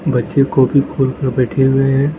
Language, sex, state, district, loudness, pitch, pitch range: Hindi, male, Arunachal Pradesh, Lower Dibang Valley, -15 LUFS, 135 Hz, 130-140 Hz